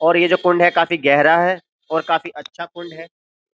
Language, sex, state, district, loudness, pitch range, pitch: Hindi, male, Uttar Pradesh, Jyotiba Phule Nagar, -16 LUFS, 165-175 Hz, 170 Hz